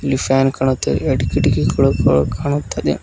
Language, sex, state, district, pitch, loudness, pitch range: Kannada, male, Karnataka, Koppal, 135 Hz, -17 LUFS, 130-140 Hz